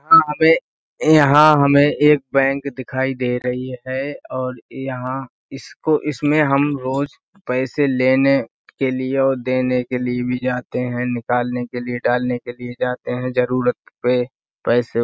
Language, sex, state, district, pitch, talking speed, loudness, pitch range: Hindi, male, Uttar Pradesh, Budaun, 130 Hz, 155 wpm, -19 LUFS, 125-140 Hz